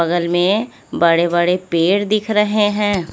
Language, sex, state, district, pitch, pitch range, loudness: Hindi, female, Chhattisgarh, Raipur, 185 Hz, 175-210 Hz, -16 LUFS